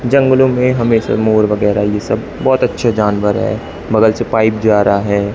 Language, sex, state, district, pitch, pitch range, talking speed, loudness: Hindi, male, Madhya Pradesh, Katni, 110 Hz, 105-115 Hz, 190 wpm, -13 LUFS